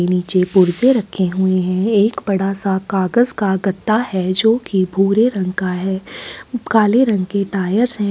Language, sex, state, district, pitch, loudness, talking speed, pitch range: Hindi, female, Chhattisgarh, Sukma, 195 Hz, -16 LUFS, 165 wpm, 185-215 Hz